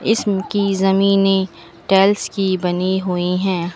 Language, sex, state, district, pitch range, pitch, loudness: Hindi, female, Uttar Pradesh, Lucknow, 185-195 Hz, 195 Hz, -17 LUFS